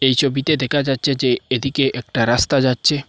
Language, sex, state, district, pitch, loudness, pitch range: Bengali, male, Assam, Hailakandi, 135 Hz, -18 LUFS, 130-140 Hz